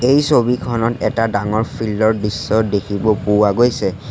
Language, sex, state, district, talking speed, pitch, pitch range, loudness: Assamese, male, Assam, Sonitpur, 145 wpm, 110 Hz, 105-120 Hz, -17 LUFS